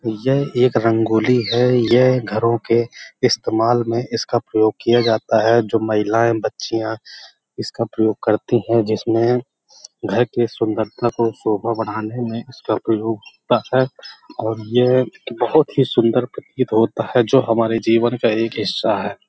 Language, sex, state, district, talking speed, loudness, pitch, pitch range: Hindi, male, Uttar Pradesh, Hamirpur, 150 wpm, -18 LUFS, 115 Hz, 110-120 Hz